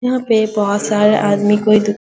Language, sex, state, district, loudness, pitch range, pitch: Hindi, female, Bihar, Araria, -14 LUFS, 205-215 Hz, 210 Hz